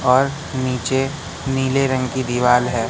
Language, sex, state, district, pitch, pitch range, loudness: Hindi, male, Madhya Pradesh, Katni, 130 Hz, 125-135 Hz, -19 LUFS